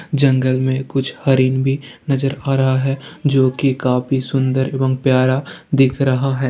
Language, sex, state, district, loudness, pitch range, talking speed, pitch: Hindi, male, Bihar, Jamui, -17 LUFS, 130-135 Hz, 165 wpm, 135 Hz